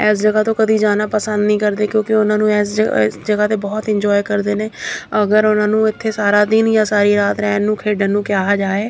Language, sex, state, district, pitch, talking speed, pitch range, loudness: Punjabi, female, Chandigarh, Chandigarh, 210 Hz, 235 wpm, 205-215 Hz, -16 LUFS